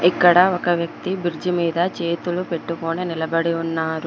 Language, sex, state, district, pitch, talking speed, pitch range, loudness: Telugu, female, Telangana, Mahabubabad, 170 Hz, 130 wpm, 165-175 Hz, -20 LUFS